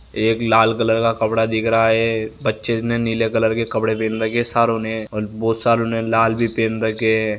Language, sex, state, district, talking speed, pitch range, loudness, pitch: Marwari, male, Rajasthan, Nagaur, 210 wpm, 110-115 Hz, -18 LUFS, 115 Hz